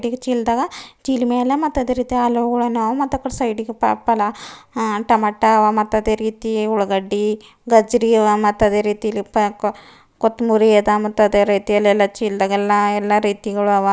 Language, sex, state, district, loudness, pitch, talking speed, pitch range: Kannada, female, Karnataka, Bidar, -17 LUFS, 220 Hz, 165 wpm, 205-235 Hz